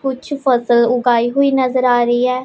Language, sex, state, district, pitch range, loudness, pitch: Hindi, female, Punjab, Pathankot, 240-265 Hz, -15 LUFS, 250 Hz